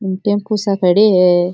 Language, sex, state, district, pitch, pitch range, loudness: Rajasthani, male, Rajasthan, Churu, 195 Hz, 180-205 Hz, -14 LUFS